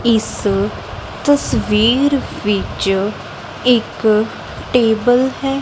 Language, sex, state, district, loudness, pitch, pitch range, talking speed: Punjabi, female, Punjab, Kapurthala, -16 LUFS, 225 Hz, 210-250 Hz, 65 wpm